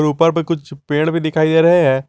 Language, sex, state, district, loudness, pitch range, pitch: Hindi, male, Jharkhand, Garhwa, -15 LUFS, 150-165 Hz, 160 Hz